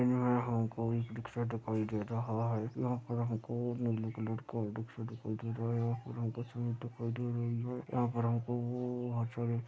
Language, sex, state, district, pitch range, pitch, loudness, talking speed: Hindi, male, Chhattisgarh, Jashpur, 115-120 Hz, 115 Hz, -37 LUFS, 200 wpm